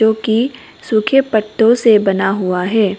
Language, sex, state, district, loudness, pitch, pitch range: Hindi, female, Arunachal Pradesh, Lower Dibang Valley, -14 LUFS, 220 Hz, 195-230 Hz